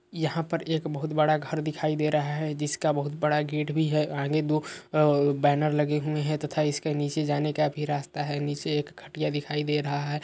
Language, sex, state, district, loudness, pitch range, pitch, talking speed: Hindi, male, Uttar Pradesh, Hamirpur, -27 LUFS, 145-155 Hz, 150 Hz, 215 wpm